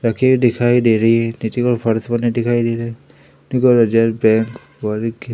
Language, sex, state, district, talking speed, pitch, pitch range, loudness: Hindi, male, Madhya Pradesh, Umaria, 155 wpm, 115 Hz, 115-120 Hz, -16 LUFS